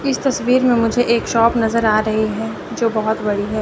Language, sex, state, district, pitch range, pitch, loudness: Hindi, female, Chandigarh, Chandigarh, 215-240 Hz, 230 Hz, -17 LUFS